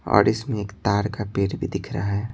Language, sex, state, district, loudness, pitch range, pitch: Hindi, male, Bihar, Patna, -24 LUFS, 100-105 Hz, 100 Hz